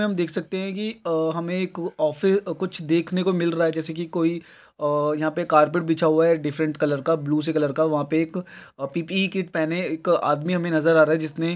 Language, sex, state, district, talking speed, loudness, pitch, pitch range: Maithili, male, Bihar, Araria, 240 wpm, -23 LUFS, 165 Hz, 155-175 Hz